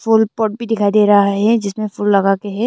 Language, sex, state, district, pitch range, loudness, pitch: Hindi, female, Arunachal Pradesh, Longding, 200-220 Hz, -15 LUFS, 210 Hz